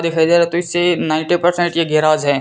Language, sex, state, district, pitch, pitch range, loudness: Hindi, female, Rajasthan, Bikaner, 170 Hz, 155-175 Hz, -15 LUFS